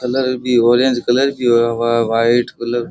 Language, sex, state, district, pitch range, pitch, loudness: Rajasthani, male, Rajasthan, Churu, 115-125 Hz, 120 Hz, -15 LUFS